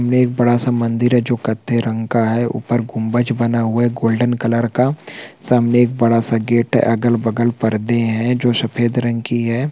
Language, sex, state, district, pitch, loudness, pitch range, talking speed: Hindi, male, Chhattisgarh, Balrampur, 120 Hz, -17 LUFS, 115-120 Hz, 200 wpm